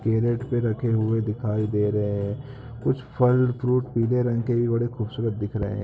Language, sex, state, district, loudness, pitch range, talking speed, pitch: Hindi, male, Uttar Pradesh, Ghazipur, -24 LUFS, 110-125 Hz, 195 wpm, 115 Hz